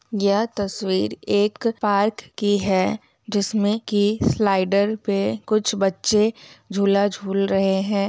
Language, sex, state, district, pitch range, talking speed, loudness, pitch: Hindi, female, Bihar, Muzaffarpur, 195-210 Hz, 120 wpm, -21 LUFS, 205 Hz